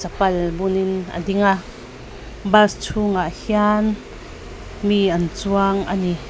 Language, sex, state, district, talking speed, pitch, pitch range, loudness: Mizo, female, Mizoram, Aizawl, 125 wpm, 190 Hz, 175-205 Hz, -19 LUFS